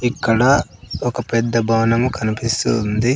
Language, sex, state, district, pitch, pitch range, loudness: Telugu, male, Andhra Pradesh, Sri Satya Sai, 115 Hz, 115-120 Hz, -18 LUFS